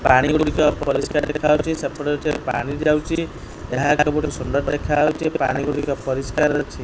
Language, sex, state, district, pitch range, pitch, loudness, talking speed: Odia, male, Odisha, Khordha, 140-150 Hz, 145 Hz, -20 LUFS, 130 wpm